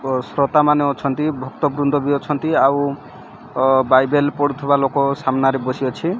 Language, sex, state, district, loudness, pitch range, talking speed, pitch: Odia, male, Odisha, Malkangiri, -18 LUFS, 135-145 Hz, 135 wpm, 140 Hz